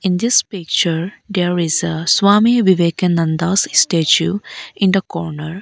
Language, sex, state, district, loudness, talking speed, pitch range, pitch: English, female, Arunachal Pradesh, Lower Dibang Valley, -15 LUFS, 115 wpm, 165-195 Hz, 180 Hz